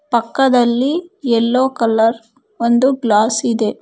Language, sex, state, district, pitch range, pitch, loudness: Kannada, female, Karnataka, Bangalore, 230-265 Hz, 235 Hz, -15 LUFS